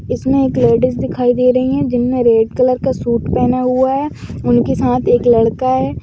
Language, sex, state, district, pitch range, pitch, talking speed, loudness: Magahi, female, Bihar, Gaya, 240-260 Hz, 250 Hz, 200 wpm, -14 LUFS